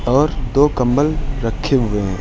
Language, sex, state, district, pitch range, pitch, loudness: Hindi, male, Uttar Pradesh, Lucknow, 120-145 Hz, 135 Hz, -17 LUFS